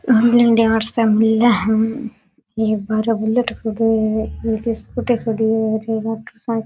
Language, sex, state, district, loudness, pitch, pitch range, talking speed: Rajasthani, female, Rajasthan, Nagaur, -18 LUFS, 225 Hz, 220-230 Hz, 155 wpm